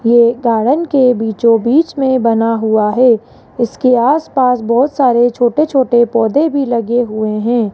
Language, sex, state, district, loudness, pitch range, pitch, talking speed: Hindi, female, Rajasthan, Jaipur, -12 LUFS, 230-260 Hz, 240 Hz, 165 wpm